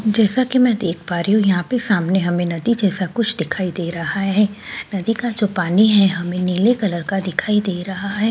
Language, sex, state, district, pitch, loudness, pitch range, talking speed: Hindi, female, Delhi, New Delhi, 195 Hz, -18 LUFS, 180-215 Hz, 225 wpm